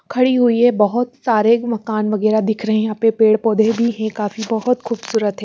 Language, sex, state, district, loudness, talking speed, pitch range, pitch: Hindi, female, Haryana, Charkhi Dadri, -17 LUFS, 230 wpm, 215-235 Hz, 220 Hz